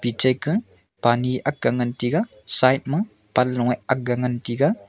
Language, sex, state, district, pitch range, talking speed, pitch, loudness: Wancho, male, Arunachal Pradesh, Longding, 120-140 Hz, 135 wpm, 125 Hz, -21 LUFS